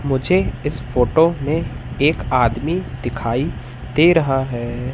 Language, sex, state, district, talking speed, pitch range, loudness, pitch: Hindi, male, Madhya Pradesh, Katni, 120 wpm, 125-160 Hz, -19 LUFS, 135 Hz